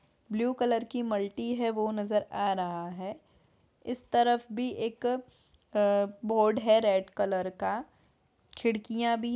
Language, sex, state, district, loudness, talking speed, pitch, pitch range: Hindi, female, Bihar, Madhepura, -30 LUFS, 145 wpm, 220 Hz, 205-240 Hz